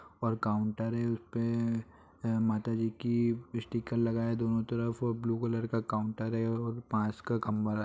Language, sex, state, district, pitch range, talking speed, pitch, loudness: Hindi, male, Bihar, East Champaran, 110-115 Hz, 170 wpm, 115 Hz, -33 LUFS